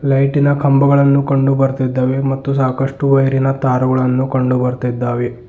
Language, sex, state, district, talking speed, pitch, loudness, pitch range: Kannada, male, Karnataka, Bidar, 110 wpm, 135 Hz, -15 LUFS, 130-135 Hz